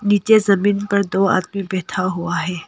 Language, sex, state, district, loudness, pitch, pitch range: Hindi, female, Arunachal Pradesh, Longding, -18 LUFS, 195 Hz, 185-205 Hz